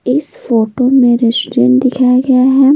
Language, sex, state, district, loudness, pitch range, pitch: Hindi, female, Bihar, Patna, -11 LUFS, 235-265 Hz, 255 Hz